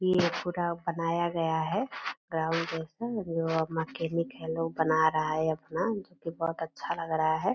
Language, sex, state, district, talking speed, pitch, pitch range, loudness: Hindi, female, Bihar, Purnia, 175 wpm, 165 Hz, 160-170 Hz, -31 LUFS